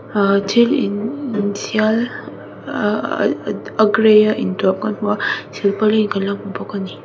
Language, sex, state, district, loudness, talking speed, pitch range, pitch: Mizo, female, Mizoram, Aizawl, -17 LUFS, 170 wpm, 200-230 Hz, 215 Hz